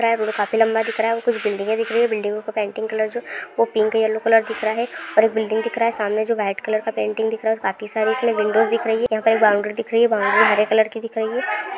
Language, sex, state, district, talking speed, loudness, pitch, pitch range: Hindi, female, Andhra Pradesh, Srikakulam, 240 wpm, -20 LUFS, 220 Hz, 215-225 Hz